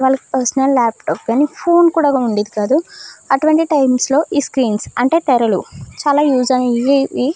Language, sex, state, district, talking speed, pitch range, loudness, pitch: Telugu, female, Andhra Pradesh, Krishna, 155 wpm, 245-290 Hz, -15 LUFS, 270 Hz